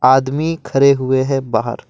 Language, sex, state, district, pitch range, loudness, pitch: Hindi, male, Assam, Kamrup Metropolitan, 130-140 Hz, -16 LUFS, 135 Hz